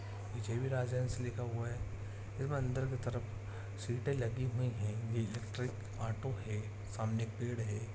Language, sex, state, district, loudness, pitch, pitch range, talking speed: Hindi, male, Uttarakhand, Uttarkashi, -39 LUFS, 115 Hz, 105-125 Hz, 165 wpm